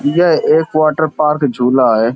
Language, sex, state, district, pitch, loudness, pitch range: Hindi, male, Uttar Pradesh, Hamirpur, 150 Hz, -13 LUFS, 130-155 Hz